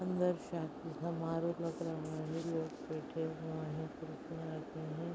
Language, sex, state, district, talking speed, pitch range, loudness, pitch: Hindi, female, Uttar Pradesh, Deoria, 150 wpm, 155-165 Hz, -41 LUFS, 160 Hz